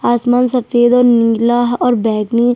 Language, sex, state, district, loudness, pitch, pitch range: Hindi, female, Chhattisgarh, Sukma, -13 LUFS, 240 Hz, 235-245 Hz